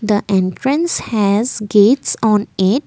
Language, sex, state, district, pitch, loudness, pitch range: English, female, Assam, Kamrup Metropolitan, 210 Hz, -15 LUFS, 205-235 Hz